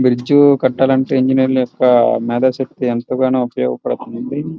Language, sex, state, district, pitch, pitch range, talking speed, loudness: Telugu, male, Andhra Pradesh, Srikakulam, 130 Hz, 125-135 Hz, 105 wpm, -15 LUFS